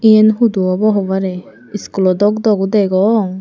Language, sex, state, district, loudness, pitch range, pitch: Chakma, female, Tripura, Unakoti, -14 LUFS, 190-215 Hz, 205 Hz